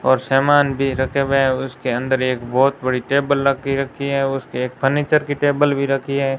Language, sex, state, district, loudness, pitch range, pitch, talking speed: Hindi, male, Rajasthan, Bikaner, -18 LUFS, 130-140 Hz, 135 Hz, 215 wpm